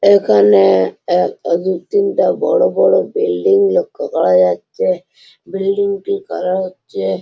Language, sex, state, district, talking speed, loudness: Bengali, male, West Bengal, Malda, 110 wpm, -15 LUFS